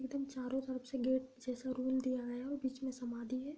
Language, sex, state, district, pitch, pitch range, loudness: Hindi, female, Bihar, Bhagalpur, 260 Hz, 255-265 Hz, -40 LUFS